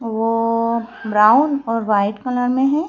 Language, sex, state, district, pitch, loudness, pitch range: Hindi, female, Madhya Pradesh, Bhopal, 230 Hz, -17 LUFS, 225-255 Hz